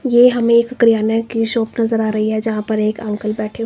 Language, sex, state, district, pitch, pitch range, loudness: Hindi, female, Himachal Pradesh, Shimla, 225 Hz, 215-230 Hz, -16 LUFS